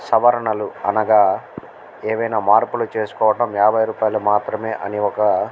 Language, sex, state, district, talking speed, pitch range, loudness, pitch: Telugu, male, Andhra Pradesh, Guntur, 120 wpm, 105-110 Hz, -18 LUFS, 110 Hz